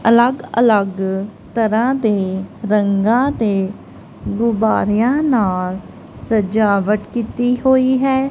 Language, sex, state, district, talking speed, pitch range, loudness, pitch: Punjabi, female, Punjab, Kapurthala, 85 wpm, 200-245 Hz, -17 LUFS, 220 Hz